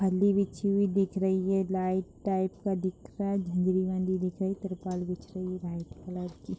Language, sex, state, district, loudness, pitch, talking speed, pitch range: Hindi, female, Uttar Pradesh, Budaun, -30 LUFS, 185 Hz, 225 wpm, 185-195 Hz